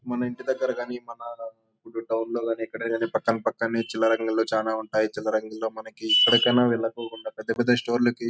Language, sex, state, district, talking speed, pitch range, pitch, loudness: Telugu, male, Andhra Pradesh, Anantapur, 180 wpm, 110-120 Hz, 115 Hz, -25 LUFS